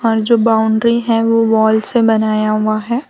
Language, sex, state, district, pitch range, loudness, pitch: Hindi, female, Gujarat, Valsad, 220-230 Hz, -13 LUFS, 225 Hz